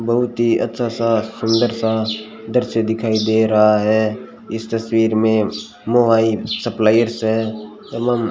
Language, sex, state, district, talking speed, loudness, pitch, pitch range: Hindi, male, Rajasthan, Bikaner, 135 wpm, -17 LUFS, 110 Hz, 110-115 Hz